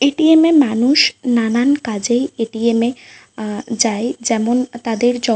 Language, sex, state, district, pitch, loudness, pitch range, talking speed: Bengali, female, West Bengal, Paschim Medinipur, 240 Hz, -16 LUFS, 230-270 Hz, 155 wpm